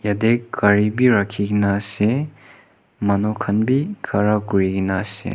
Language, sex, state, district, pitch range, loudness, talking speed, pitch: Nagamese, male, Nagaland, Kohima, 100-115 Hz, -19 LUFS, 145 wpm, 105 Hz